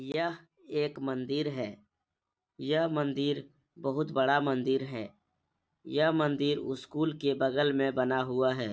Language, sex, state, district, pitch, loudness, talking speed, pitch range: Hindi, male, Bihar, Supaul, 140 Hz, -31 LUFS, 135 wpm, 135-150 Hz